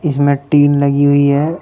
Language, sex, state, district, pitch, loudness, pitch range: Hindi, male, Uttar Pradesh, Shamli, 145 Hz, -12 LUFS, 140-145 Hz